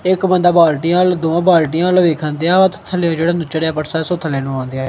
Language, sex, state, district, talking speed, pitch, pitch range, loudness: Punjabi, male, Punjab, Kapurthala, 110 wpm, 170 Hz, 160-180 Hz, -15 LUFS